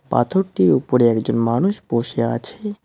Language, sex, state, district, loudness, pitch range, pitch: Bengali, male, West Bengal, Cooch Behar, -19 LUFS, 115-190 Hz, 125 Hz